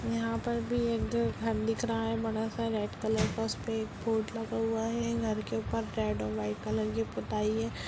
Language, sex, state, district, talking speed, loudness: Hindi, female, Bihar, Muzaffarpur, 230 wpm, -32 LUFS